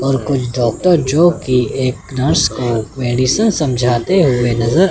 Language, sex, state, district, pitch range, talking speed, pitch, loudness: Hindi, male, Chandigarh, Chandigarh, 120-160 Hz, 135 wpm, 130 Hz, -15 LUFS